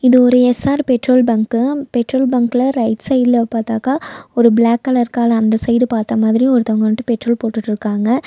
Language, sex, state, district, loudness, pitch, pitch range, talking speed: Tamil, female, Tamil Nadu, Nilgiris, -15 LUFS, 235 Hz, 225-250 Hz, 160 wpm